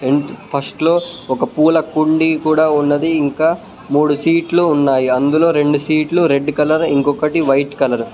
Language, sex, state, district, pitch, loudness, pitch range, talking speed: Telugu, male, Telangana, Mahabubabad, 150 Hz, -15 LUFS, 140-160 Hz, 145 wpm